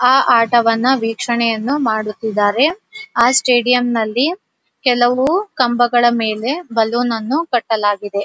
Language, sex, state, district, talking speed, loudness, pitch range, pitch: Kannada, female, Karnataka, Dharwad, 95 wpm, -15 LUFS, 225-265 Hz, 240 Hz